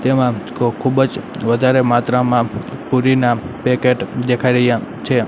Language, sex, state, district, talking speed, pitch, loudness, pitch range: Gujarati, male, Gujarat, Gandhinagar, 125 wpm, 125 Hz, -16 LUFS, 120-130 Hz